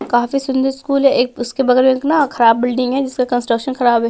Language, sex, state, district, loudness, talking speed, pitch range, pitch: Hindi, male, Bihar, West Champaran, -15 LUFS, 250 wpm, 245-270 Hz, 255 Hz